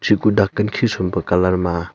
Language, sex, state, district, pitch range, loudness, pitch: Wancho, male, Arunachal Pradesh, Longding, 90-105 Hz, -18 LUFS, 95 Hz